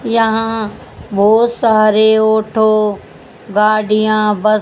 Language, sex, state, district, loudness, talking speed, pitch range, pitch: Hindi, female, Haryana, Rohtak, -13 LUFS, 90 wpm, 215-225 Hz, 215 Hz